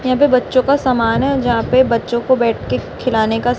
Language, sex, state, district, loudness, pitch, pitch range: Hindi, female, Chhattisgarh, Raipur, -15 LUFS, 250 Hz, 235-260 Hz